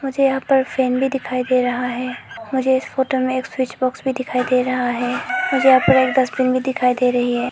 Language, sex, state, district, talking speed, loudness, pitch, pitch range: Hindi, female, Arunachal Pradesh, Lower Dibang Valley, 240 wpm, -18 LUFS, 255 Hz, 250-265 Hz